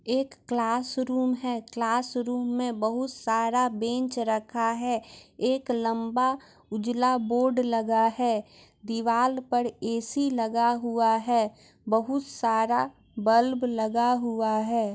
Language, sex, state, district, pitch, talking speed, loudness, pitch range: Maithili, female, Bihar, Muzaffarpur, 235 Hz, 110 wpm, -27 LUFS, 225-250 Hz